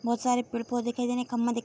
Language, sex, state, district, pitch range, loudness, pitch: Hindi, female, Bihar, Darbhanga, 235-245 Hz, -29 LUFS, 240 Hz